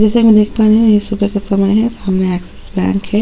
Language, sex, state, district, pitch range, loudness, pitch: Hindi, female, Chhattisgarh, Sukma, 195-215 Hz, -13 LUFS, 210 Hz